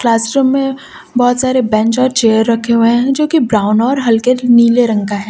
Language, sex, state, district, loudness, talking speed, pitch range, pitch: Hindi, female, Uttar Pradesh, Lucknow, -12 LUFS, 215 wpm, 225-260 Hz, 240 Hz